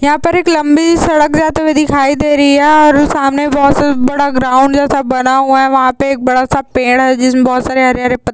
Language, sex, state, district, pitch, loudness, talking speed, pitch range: Hindi, female, Uttar Pradesh, Hamirpur, 280 Hz, -10 LUFS, 245 wpm, 260-295 Hz